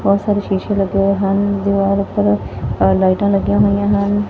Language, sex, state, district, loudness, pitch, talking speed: Punjabi, female, Punjab, Fazilka, -16 LUFS, 195 Hz, 180 wpm